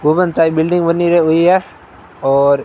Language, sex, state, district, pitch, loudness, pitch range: Hindi, male, Rajasthan, Bikaner, 165 Hz, -13 LUFS, 155-175 Hz